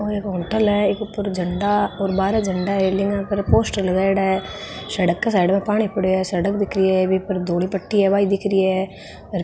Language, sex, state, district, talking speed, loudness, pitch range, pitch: Marwari, female, Rajasthan, Nagaur, 240 wpm, -20 LUFS, 190-205 Hz, 195 Hz